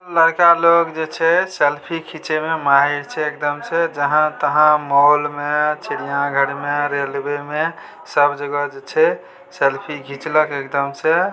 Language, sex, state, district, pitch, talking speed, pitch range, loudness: Maithili, male, Bihar, Samastipur, 150 Hz, 145 wpm, 145-165 Hz, -18 LUFS